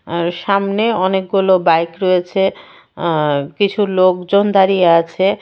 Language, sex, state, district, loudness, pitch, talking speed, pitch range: Bengali, female, Tripura, West Tripura, -15 LUFS, 185 Hz, 110 wpm, 170-195 Hz